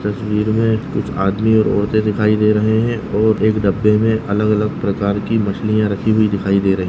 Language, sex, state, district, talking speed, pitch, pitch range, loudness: Hindi, male, Maharashtra, Nagpur, 200 wpm, 105 Hz, 100-110 Hz, -16 LUFS